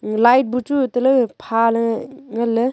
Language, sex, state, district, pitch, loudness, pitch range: Wancho, female, Arunachal Pradesh, Longding, 240 Hz, -18 LUFS, 230-260 Hz